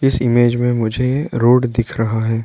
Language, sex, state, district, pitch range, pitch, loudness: Hindi, male, Arunachal Pradesh, Lower Dibang Valley, 115-125 Hz, 120 Hz, -16 LUFS